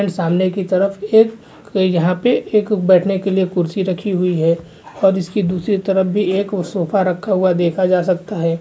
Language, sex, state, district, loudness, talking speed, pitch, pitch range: Hindi, male, Bihar, Vaishali, -17 LUFS, 190 wpm, 190 Hz, 180-200 Hz